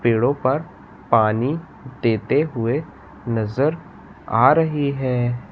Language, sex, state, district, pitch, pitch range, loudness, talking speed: Hindi, male, Madhya Pradesh, Katni, 130 Hz, 115-145 Hz, -20 LUFS, 100 wpm